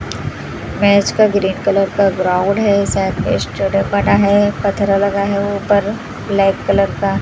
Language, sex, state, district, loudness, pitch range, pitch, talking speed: Hindi, female, Maharashtra, Mumbai Suburban, -15 LUFS, 195-205 Hz, 200 Hz, 160 wpm